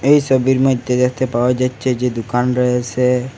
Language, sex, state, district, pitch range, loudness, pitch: Bengali, male, Assam, Hailakandi, 125-130 Hz, -16 LUFS, 125 Hz